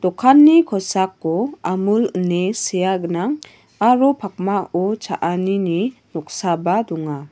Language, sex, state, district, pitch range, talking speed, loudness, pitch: Garo, female, Meghalaya, West Garo Hills, 175-225 Hz, 90 wpm, -18 LUFS, 190 Hz